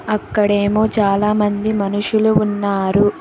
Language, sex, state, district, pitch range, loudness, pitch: Telugu, female, Telangana, Hyderabad, 205-215 Hz, -16 LUFS, 205 Hz